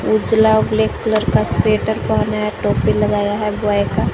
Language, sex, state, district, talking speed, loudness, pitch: Hindi, female, Jharkhand, Garhwa, 190 wpm, -16 LUFS, 205 Hz